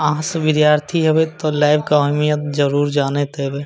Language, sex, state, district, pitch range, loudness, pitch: Maithili, male, Bihar, Madhepura, 145-155 Hz, -17 LUFS, 150 Hz